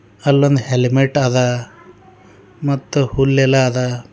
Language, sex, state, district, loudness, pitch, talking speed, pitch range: Kannada, male, Karnataka, Bidar, -16 LUFS, 130 Hz, 85 wpm, 120-140 Hz